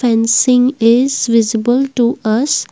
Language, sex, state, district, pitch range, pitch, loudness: English, female, Assam, Kamrup Metropolitan, 230-255 Hz, 240 Hz, -13 LUFS